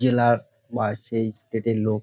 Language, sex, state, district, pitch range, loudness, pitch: Bengali, male, West Bengal, Dakshin Dinajpur, 110-120 Hz, -25 LUFS, 115 Hz